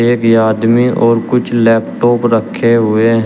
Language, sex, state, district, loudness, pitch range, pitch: Hindi, male, Uttar Pradesh, Shamli, -11 LUFS, 115-120 Hz, 115 Hz